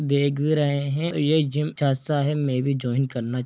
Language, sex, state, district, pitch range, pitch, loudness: Hindi, male, Jharkhand, Sahebganj, 135-150 Hz, 140 Hz, -23 LUFS